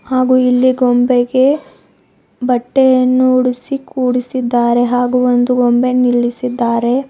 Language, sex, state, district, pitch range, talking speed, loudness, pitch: Kannada, female, Karnataka, Bidar, 245-255 Hz, 85 wpm, -13 LUFS, 250 Hz